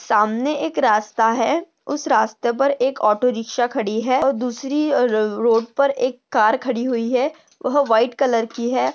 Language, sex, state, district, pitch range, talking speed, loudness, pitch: Hindi, female, Maharashtra, Sindhudurg, 225-275 Hz, 180 wpm, -19 LUFS, 250 Hz